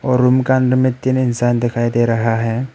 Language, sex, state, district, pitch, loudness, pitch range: Hindi, male, Arunachal Pradesh, Papum Pare, 120 Hz, -16 LUFS, 120-130 Hz